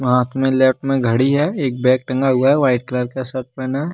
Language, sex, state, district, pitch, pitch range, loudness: Hindi, male, Jharkhand, Deoghar, 130 Hz, 125-135 Hz, -17 LUFS